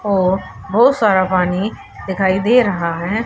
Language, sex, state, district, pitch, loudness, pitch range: Hindi, female, Haryana, Charkhi Dadri, 190 Hz, -16 LUFS, 185-220 Hz